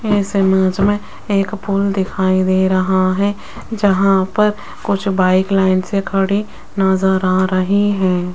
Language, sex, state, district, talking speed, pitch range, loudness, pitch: Hindi, female, Rajasthan, Jaipur, 145 wpm, 185-200 Hz, -16 LUFS, 195 Hz